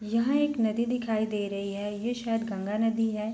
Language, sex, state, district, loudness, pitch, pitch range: Hindi, female, Bihar, East Champaran, -29 LUFS, 220 Hz, 210-230 Hz